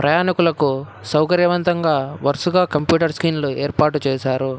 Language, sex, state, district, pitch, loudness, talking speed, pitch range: Telugu, male, Telangana, Hyderabad, 150 Hz, -18 LUFS, 90 wpm, 140-170 Hz